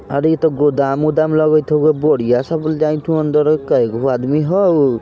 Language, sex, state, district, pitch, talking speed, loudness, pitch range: Bajjika, male, Bihar, Vaishali, 155 Hz, 190 wpm, -15 LUFS, 140-155 Hz